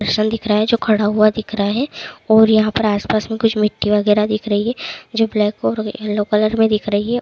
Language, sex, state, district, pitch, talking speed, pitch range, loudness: Hindi, male, Bihar, Begusarai, 215 Hz, 255 wpm, 210-220 Hz, -17 LUFS